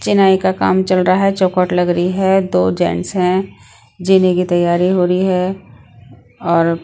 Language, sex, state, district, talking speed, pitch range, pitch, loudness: Hindi, female, Bihar, West Champaran, 175 wpm, 170-190 Hz, 180 Hz, -14 LUFS